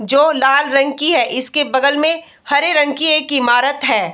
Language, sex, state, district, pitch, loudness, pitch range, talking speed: Hindi, female, Bihar, Bhagalpur, 285 Hz, -14 LUFS, 270-305 Hz, 205 wpm